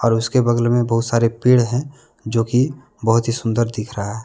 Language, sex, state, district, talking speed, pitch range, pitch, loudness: Hindi, male, Jharkhand, Deoghar, 225 wpm, 115-125 Hz, 115 Hz, -18 LUFS